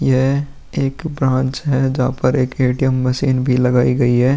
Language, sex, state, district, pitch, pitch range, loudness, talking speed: Hindi, male, Uttar Pradesh, Muzaffarnagar, 130 Hz, 125-135 Hz, -17 LUFS, 180 wpm